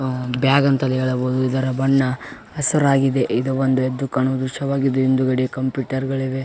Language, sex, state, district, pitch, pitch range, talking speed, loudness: Kannada, male, Karnataka, Raichur, 130 Hz, 130-135 Hz, 150 wpm, -19 LUFS